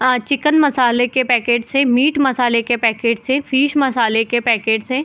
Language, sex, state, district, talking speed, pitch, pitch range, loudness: Hindi, female, Bihar, Gopalganj, 190 wpm, 250 Hz, 235-270 Hz, -16 LUFS